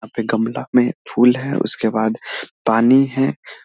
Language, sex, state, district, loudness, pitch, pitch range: Hindi, male, Bihar, Muzaffarpur, -18 LUFS, 115 Hz, 110-130 Hz